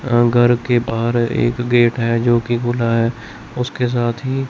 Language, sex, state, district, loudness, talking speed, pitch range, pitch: Hindi, male, Chandigarh, Chandigarh, -17 LUFS, 175 wpm, 115-120 Hz, 120 Hz